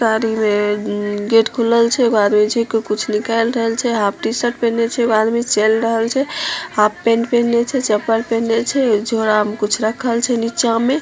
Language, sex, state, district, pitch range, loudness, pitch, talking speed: Maithili, female, Bihar, Samastipur, 215-235 Hz, -16 LUFS, 230 Hz, 195 wpm